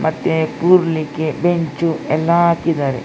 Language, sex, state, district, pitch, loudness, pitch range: Kannada, female, Karnataka, Dakshina Kannada, 165 Hz, -16 LUFS, 155-170 Hz